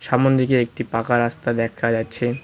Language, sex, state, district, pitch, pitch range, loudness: Bengali, male, West Bengal, Cooch Behar, 120 Hz, 115-125 Hz, -20 LUFS